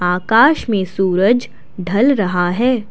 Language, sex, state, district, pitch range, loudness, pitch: Hindi, female, Assam, Kamrup Metropolitan, 185-245 Hz, -15 LUFS, 205 Hz